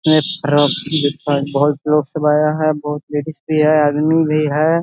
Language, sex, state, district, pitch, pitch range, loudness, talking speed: Hindi, male, Bihar, East Champaran, 150 Hz, 145-155 Hz, -16 LUFS, 175 wpm